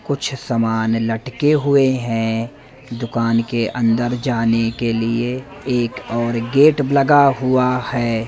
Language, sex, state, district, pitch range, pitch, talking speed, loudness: Hindi, male, Madhya Pradesh, Umaria, 115-135 Hz, 120 Hz, 125 wpm, -18 LUFS